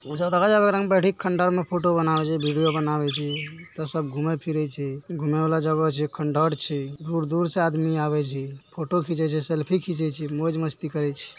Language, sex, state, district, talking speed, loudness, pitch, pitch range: Hindi, male, Bihar, Araria, 215 wpm, -24 LUFS, 160 Hz, 150-170 Hz